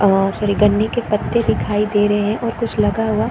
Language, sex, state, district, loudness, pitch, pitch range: Hindi, female, Chhattisgarh, Korba, -17 LUFS, 210 Hz, 205-225 Hz